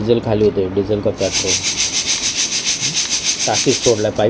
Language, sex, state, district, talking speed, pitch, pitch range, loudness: Marathi, male, Maharashtra, Mumbai Suburban, 140 wpm, 105 Hz, 100-110 Hz, -16 LUFS